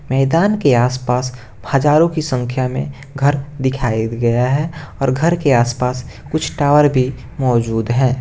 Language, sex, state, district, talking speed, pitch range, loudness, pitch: Hindi, male, Bihar, Gopalganj, 145 wpm, 125-145 Hz, -16 LUFS, 130 Hz